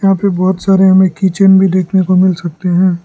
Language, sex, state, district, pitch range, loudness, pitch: Hindi, male, Arunachal Pradesh, Lower Dibang Valley, 185-190 Hz, -11 LUFS, 185 Hz